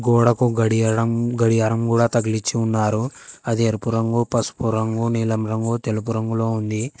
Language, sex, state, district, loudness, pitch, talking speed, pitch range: Telugu, female, Telangana, Hyderabad, -20 LUFS, 115 Hz, 135 wpm, 110-115 Hz